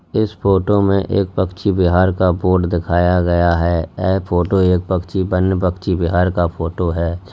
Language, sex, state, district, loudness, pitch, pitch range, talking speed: Hindi, male, Uttar Pradesh, Lalitpur, -16 LUFS, 90 Hz, 85-95 Hz, 170 wpm